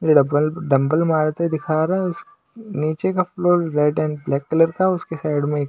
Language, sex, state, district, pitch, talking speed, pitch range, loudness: Hindi, male, Maharashtra, Washim, 160 Hz, 190 wpm, 150-180 Hz, -20 LUFS